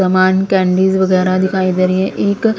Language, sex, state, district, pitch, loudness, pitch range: Hindi, female, Punjab, Kapurthala, 190 Hz, -14 LUFS, 185-190 Hz